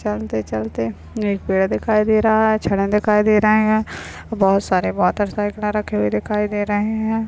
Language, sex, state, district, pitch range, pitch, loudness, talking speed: Hindi, male, Maharashtra, Nagpur, 195-215 Hz, 210 Hz, -19 LUFS, 165 wpm